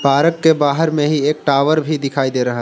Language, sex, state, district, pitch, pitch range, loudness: Hindi, male, Jharkhand, Ranchi, 145 Hz, 140-155 Hz, -16 LUFS